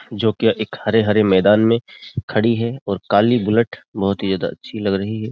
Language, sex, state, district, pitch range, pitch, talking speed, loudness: Hindi, male, Uttar Pradesh, Jyotiba Phule Nagar, 100-115 Hz, 110 Hz, 215 wpm, -18 LUFS